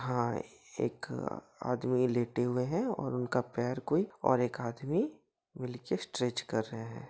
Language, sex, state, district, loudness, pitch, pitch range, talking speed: Hindi, male, Jharkhand, Sahebganj, -34 LUFS, 125 Hz, 120-130 Hz, 150 wpm